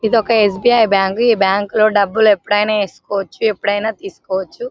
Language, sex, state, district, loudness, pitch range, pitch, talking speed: Telugu, female, Telangana, Nalgonda, -15 LUFS, 200-225 Hz, 210 Hz, 115 wpm